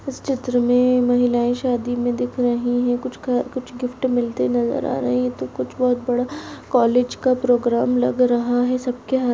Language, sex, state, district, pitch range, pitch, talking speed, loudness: Hindi, female, Chhattisgarh, Sarguja, 240-250 Hz, 245 Hz, 200 wpm, -20 LUFS